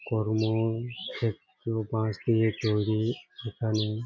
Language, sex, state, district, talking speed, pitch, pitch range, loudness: Bengali, male, West Bengal, Jhargram, 105 wpm, 110 Hz, 110-115 Hz, -29 LUFS